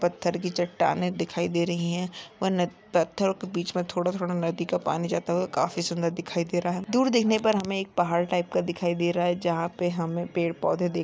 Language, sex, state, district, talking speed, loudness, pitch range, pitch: Hindi, female, Chhattisgarh, Sarguja, 230 wpm, -27 LUFS, 170-180 Hz, 175 Hz